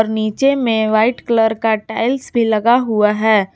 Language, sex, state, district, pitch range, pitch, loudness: Hindi, female, Jharkhand, Garhwa, 215-240 Hz, 220 Hz, -15 LUFS